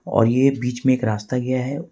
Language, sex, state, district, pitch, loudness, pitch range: Hindi, male, Jharkhand, Ranchi, 130 Hz, -20 LUFS, 120-135 Hz